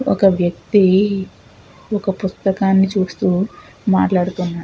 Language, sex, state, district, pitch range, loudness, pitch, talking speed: Telugu, female, Andhra Pradesh, Guntur, 180-195 Hz, -17 LUFS, 190 Hz, 80 wpm